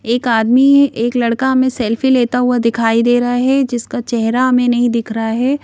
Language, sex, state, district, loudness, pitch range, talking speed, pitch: Hindi, female, Madhya Pradesh, Bhopal, -14 LUFS, 230-255 Hz, 200 wpm, 245 Hz